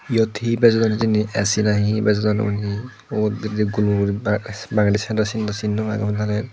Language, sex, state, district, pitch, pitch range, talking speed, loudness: Chakma, male, Tripura, Dhalai, 105 Hz, 105-110 Hz, 210 wpm, -20 LUFS